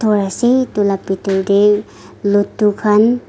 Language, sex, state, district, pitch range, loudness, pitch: Nagamese, female, Nagaland, Kohima, 200-215 Hz, -15 LUFS, 205 Hz